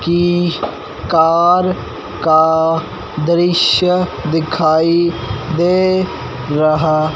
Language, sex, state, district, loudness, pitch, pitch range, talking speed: Hindi, male, Punjab, Fazilka, -14 LUFS, 165 Hz, 155-175 Hz, 60 wpm